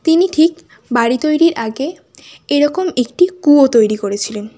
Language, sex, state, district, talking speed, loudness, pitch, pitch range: Bengali, female, West Bengal, Kolkata, 130 wpm, -14 LUFS, 285 Hz, 230-330 Hz